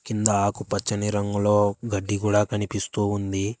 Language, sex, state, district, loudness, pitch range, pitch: Telugu, male, Telangana, Hyderabad, -24 LUFS, 100-105 Hz, 105 Hz